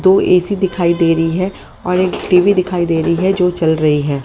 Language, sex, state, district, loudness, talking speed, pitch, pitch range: Hindi, female, Haryana, Jhajjar, -14 LUFS, 240 wpm, 180 Hz, 165-185 Hz